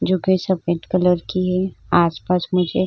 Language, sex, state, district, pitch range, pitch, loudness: Hindi, female, Uttar Pradesh, Budaun, 175-185 Hz, 180 Hz, -19 LUFS